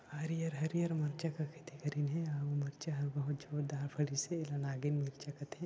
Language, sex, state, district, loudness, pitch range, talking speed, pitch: Chhattisgarhi, male, Chhattisgarh, Sarguja, -39 LUFS, 145-160 Hz, 180 wpm, 150 Hz